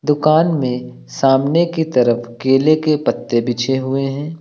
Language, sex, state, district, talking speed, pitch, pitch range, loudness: Hindi, male, Uttar Pradesh, Lucknow, 150 wpm, 135 Hz, 120-155 Hz, -16 LUFS